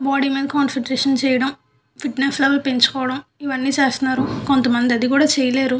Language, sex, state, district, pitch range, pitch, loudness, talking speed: Telugu, female, Andhra Pradesh, Visakhapatnam, 260-275 Hz, 270 Hz, -18 LUFS, 145 wpm